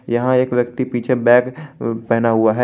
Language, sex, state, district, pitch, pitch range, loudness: Hindi, male, Jharkhand, Garhwa, 120 Hz, 115-130 Hz, -17 LUFS